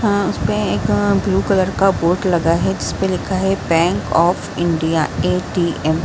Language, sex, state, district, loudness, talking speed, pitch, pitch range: Hindi, female, Bihar, Saharsa, -17 LUFS, 170 wpm, 175 Hz, 165-195 Hz